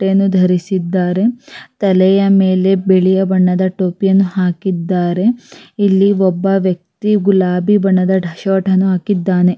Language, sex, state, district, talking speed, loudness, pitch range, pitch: Kannada, female, Karnataka, Raichur, 100 wpm, -14 LUFS, 185-195 Hz, 190 Hz